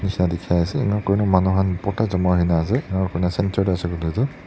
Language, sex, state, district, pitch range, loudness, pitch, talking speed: Nagamese, male, Nagaland, Dimapur, 90-100 Hz, -21 LUFS, 95 Hz, 240 wpm